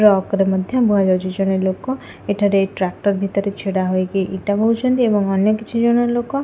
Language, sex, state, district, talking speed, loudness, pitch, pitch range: Odia, female, Odisha, Khordha, 175 wpm, -18 LUFS, 200 Hz, 190-225 Hz